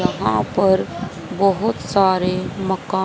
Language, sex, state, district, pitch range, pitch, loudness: Hindi, female, Haryana, Rohtak, 185-195 Hz, 190 Hz, -19 LUFS